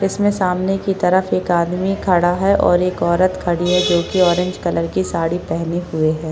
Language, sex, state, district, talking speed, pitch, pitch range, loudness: Hindi, female, Maharashtra, Chandrapur, 200 wpm, 180 Hz, 170-185 Hz, -17 LUFS